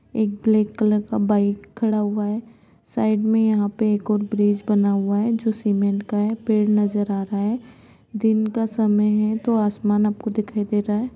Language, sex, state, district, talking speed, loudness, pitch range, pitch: Hindi, female, Jharkhand, Jamtara, 205 wpm, -21 LUFS, 205-220 Hz, 210 Hz